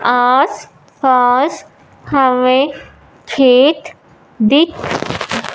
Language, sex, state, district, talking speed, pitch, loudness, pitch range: Hindi, female, Punjab, Fazilka, 55 wpm, 260 Hz, -13 LUFS, 245-285 Hz